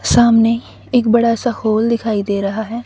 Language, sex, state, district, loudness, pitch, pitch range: Hindi, female, Haryana, Rohtak, -15 LUFS, 230 Hz, 220-235 Hz